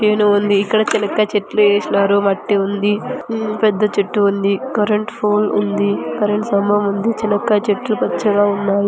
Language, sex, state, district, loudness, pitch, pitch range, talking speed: Telugu, female, Andhra Pradesh, Anantapur, -16 LUFS, 205 Hz, 200-215 Hz, 155 wpm